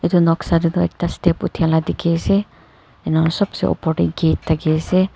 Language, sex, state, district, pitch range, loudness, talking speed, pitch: Nagamese, female, Nagaland, Kohima, 160-175 Hz, -18 LUFS, 200 wpm, 165 Hz